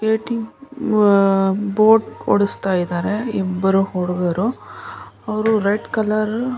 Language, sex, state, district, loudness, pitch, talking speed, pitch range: Kannada, female, Karnataka, Mysore, -18 LUFS, 210 Hz, 80 wpm, 195-220 Hz